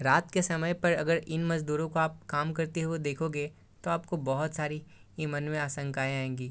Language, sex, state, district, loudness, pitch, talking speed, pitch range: Hindi, male, Bihar, East Champaran, -31 LUFS, 155 Hz, 210 wpm, 145-165 Hz